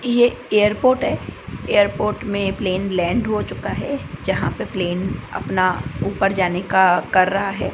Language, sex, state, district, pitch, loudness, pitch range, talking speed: Hindi, female, Gujarat, Gandhinagar, 195 Hz, -20 LUFS, 185-210 Hz, 155 wpm